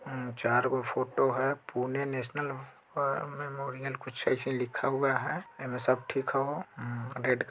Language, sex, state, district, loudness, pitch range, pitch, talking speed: Bajjika, male, Bihar, Vaishali, -32 LUFS, 125-140 Hz, 135 Hz, 170 wpm